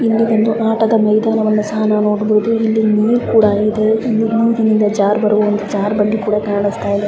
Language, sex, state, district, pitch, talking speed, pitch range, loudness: Kannada, female, Karnataka, Bijapur, 215 Hz, 95 wpm, 210-225 Hz, -14 LUFS